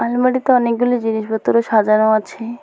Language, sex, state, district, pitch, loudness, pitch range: Bengali, female, West Bengal, Alipurduar, 230 Hz, -16 LUFS, 220-245 Hz